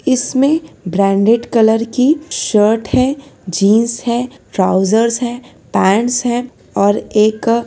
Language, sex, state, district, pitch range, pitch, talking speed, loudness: Hindi, female, Maharashtra, Solapur, 210-250 Hz, 230 Hz, 110 wpm, -14 LUFS